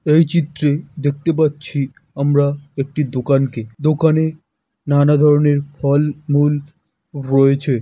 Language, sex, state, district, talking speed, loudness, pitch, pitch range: Bengali, male, West Bengal, Dakshin Dinajpur, 100 wpm, -17 LUFS, 145 Hz, 140-155 Hz